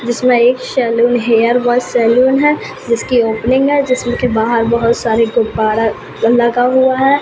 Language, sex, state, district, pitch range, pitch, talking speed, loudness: Hindi, female, Uttar Pradesh, Ghazipur, 230-255 Hz, 240 Hz, 160 wpm, -13 LUFS